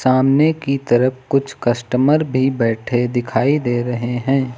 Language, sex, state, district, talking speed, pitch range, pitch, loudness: Hindi, female, Uttar Pradesh, Lucknow, 145 wpm, 120-135 Hz, 130 Hz, -17 LUFS